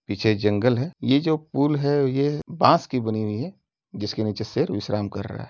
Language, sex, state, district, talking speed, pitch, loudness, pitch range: Hindi, male, Uttar Pradesh, Jalaun, 220 wpm, 125 Hz, -23 LUFS, 105-145 Hz